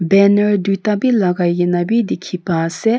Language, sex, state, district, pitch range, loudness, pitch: Nagamese, female, Nagaland, Kohima, 175-210 Hz, -16 LUFS, 195 Hz